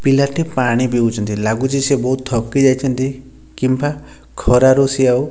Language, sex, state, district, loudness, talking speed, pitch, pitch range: Odia, male, Odisha, Nuapada, -16 LUFS, 160 wpm, 130 Hz, 125-135 Hz